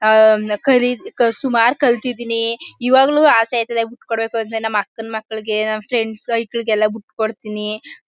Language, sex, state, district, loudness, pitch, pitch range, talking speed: Kannada, female, Karnataka, Mysore, -17 LUFS, 225 Hz, 215-240 Hz, 135 wpm